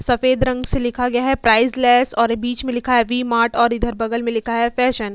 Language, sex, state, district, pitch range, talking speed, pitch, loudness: Hindi, female, Uttar Pradesh, Hamirpur, 230-250 Hz, 255 wpm, 240 Hz, -17 LUFS